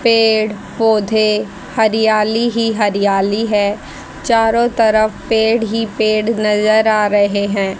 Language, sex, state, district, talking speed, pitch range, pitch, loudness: Hindi, female, Haryana, Rohtak, 115 wpm, 210-225 Hz, 215 Hz, -14 LUFS